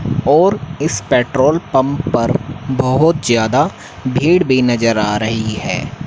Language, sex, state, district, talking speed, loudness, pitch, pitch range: Hindi, male, Haryana, Rohtak, 130 wpm, -15 LUFS, 130 Hz, 120-150 Hz